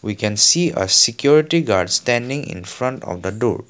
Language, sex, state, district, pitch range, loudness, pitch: English, male, Assam, Kamrup Metropolitan, 105-150 Hz, -17 LUFS, 120 Hz